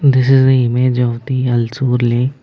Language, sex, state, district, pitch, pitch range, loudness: English, male, Karnataka, Bangalore, 125 Hz, 120-130 Hz, -14 LUFS